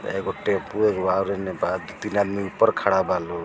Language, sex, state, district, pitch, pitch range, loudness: Bhojpuri, male, Bihar, East Champaran, 100 Hz, 95-100 Hz, -23 LUFS